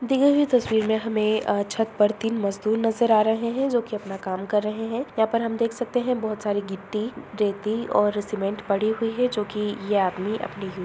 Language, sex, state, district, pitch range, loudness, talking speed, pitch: Hindi, female, Bihar, Jamui, 205-230 Hz, -24 LUFS, 230 wpm, 215 Hz